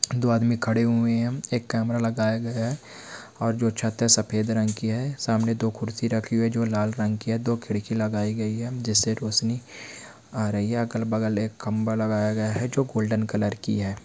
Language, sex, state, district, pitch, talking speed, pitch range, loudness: Hindi, male, Bihar, Saran, 110 Hz, 215 wpm, 110-115 Hz, -25 LUFS